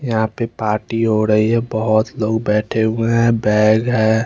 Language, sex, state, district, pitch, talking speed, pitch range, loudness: Hindi, male, Chandigarh, Chandigarh, 110 Hz, 170 wpm, 110-115 Hz, -17 LUFS